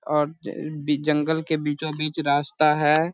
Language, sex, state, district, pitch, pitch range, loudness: Hindi, male, Bihar, Purnia, 150 Hz, 150-155 Hz, -23 LUFS